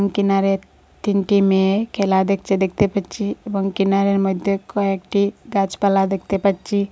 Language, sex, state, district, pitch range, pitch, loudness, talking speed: Bengali, female, Assam, Hailakandi, 195-200 Hz, 195 Hz, -19 LUFS, 120 wpm